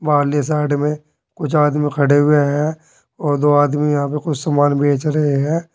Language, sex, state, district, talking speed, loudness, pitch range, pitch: Hindi, male, Uttar Pradesh, Saharanpur, 190 wpm, -17 LUFS, 145-150 Hz, 150 Hz